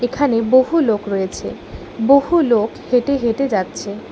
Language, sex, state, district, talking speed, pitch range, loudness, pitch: Bengali, female, West Bengal, Alipurduar, 130 wpm, 220-275 Hz, -17 LUFS, 245 Hz